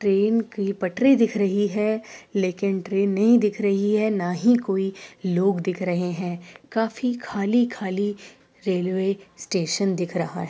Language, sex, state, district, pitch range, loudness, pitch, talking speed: Hindi, female, Uttar Pradesh, Jyotiba Phule Nagar, 185-215 Hz, -23 LUFS, 200 Hz, 155 wpm